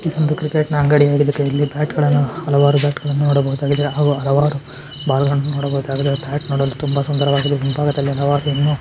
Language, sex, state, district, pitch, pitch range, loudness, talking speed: Kannada, female, Karnataka, Shimoga, 145 Hz, 140-145 Hz, -17 LUFS, 135 wpm